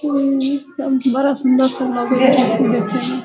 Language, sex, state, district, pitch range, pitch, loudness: Hindi, female, Bihar, Sitamarhi, 255-275 Hz, 260 Hz, -16 LUFS